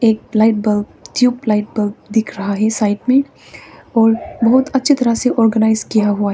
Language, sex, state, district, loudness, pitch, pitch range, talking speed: Hindi, female, Arunachal Pradesh, Papum Pare, -15 LUFS, 225 Hz, 210-250 Hz, 180 wpm